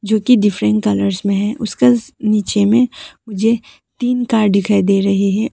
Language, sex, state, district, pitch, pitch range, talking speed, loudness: Hindi, female, Arunachal Pradesh, Papum Pare, 210 Hz, 200-230 Hz, 175 wpm, -15 LUFS